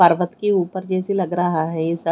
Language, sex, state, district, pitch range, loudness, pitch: Hindi, female, Odisha, Khordha, 170-185 Hz, -21 LUFS, 175 Hz